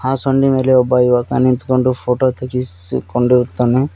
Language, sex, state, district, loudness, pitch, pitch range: Kannada, male, Karnataka, Koppal, -15 LUFS, 125 Hz, 125-130 Hz